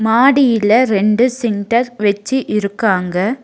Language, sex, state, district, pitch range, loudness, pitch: Tamil, female, Tamil Nadu, Nilgiris, 205-245 Hz, -14 LUFS, 225 Hz